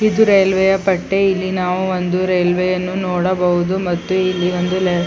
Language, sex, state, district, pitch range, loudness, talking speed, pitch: Kannada, female, Karnataka, Chamarajanagar, 180-190 Hz, -16 LUFS, 140 wpm, 185 Hz